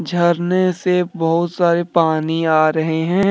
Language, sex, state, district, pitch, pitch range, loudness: Hindi, male, Jharkhand, Deoghar, 170 Hz, 160-175 Hz, -17 LUFS